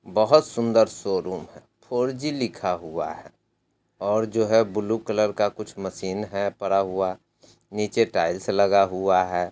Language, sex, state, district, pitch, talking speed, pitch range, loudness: Hindi, male, Bihar, Sitamarhi, 105 Hz, 160 wpm, 95-115 Hz, -24 LUFS